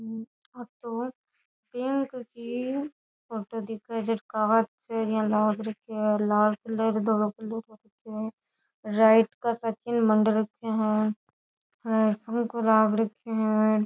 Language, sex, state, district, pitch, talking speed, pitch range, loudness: Rajasthani, female, Rajasthan, Churu, 220 Hz, 140 wpm, 215-230 Hz, -27 LUFS